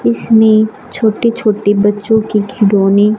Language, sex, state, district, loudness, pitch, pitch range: Hindi, male, Punjab, Fazilka, -12 LUFS, 215 Hz, 205-220 Hz